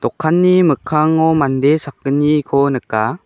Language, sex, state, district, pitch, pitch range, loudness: Garo, male, Meghalaya, West Garo Hills, 150 Hz, 140-160 Hz, -15 LUFS